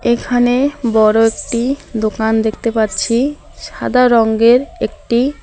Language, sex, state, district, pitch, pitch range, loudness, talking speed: Bengali, female, West Bengal, Alipurduar, 235 Hz, 220-255 Hz, -14 LUFS, 110 wpm